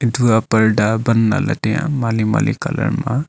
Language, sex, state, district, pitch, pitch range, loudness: Wancho, male, Arunachal Pradesh, Longding, 120 Hz, 110-145 Hz, -17 LUFS